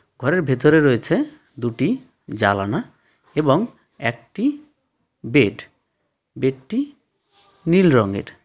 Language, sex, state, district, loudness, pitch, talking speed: Bengali, male, West Bengal, Darjeeling, -20 LUFS, 150 Hz, 85 wpm